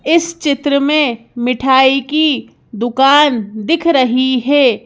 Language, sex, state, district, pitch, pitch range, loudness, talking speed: Hindi, female, Madhya Pradesh, Bhopal, 270 Hz, 250-295 Hz, -13 LUFS, 110 wpm